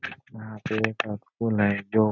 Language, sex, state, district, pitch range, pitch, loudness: Hindi, male, Bihar, Araria, 105-110 Hz, 110 Hz, -27 LUFS